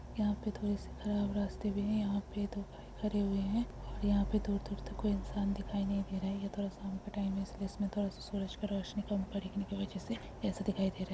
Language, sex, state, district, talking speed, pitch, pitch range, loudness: Hindi, female, Bihar, Jamui, 290 wpm, 200 Hz, 195-205 Hz, -37 LUFS